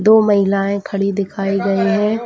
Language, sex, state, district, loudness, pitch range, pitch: Hindi, female, Chhattisgarh, Bilaspur, -16 LUFS, 195-210 Hz, 200 Hz